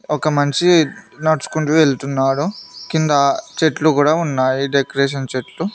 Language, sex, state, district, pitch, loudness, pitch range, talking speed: Telugu, male, Telangana, Mahabubabad, 150 Hz, -17 LUFS, 140-160 Hz, 105 wpm